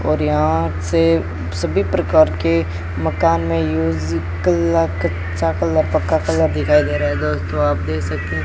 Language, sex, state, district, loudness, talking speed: Hindi, male, Rajasthan, Bikaner, -18 LUFS, 130 wpm